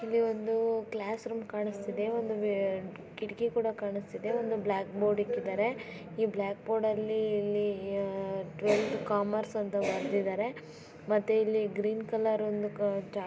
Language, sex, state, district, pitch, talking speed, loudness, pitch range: Kannada, female, Karnataka, Shimoga, 210 Hz, 130 wpm, -32 LUFS, 200-220 Hz